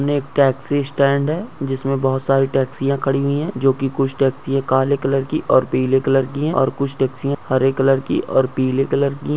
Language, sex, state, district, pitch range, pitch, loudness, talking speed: Hindi, male, Maharashtra, Aurangabad, 135-140 Hz, 135 Hz, -18 LUFS, 220 wpm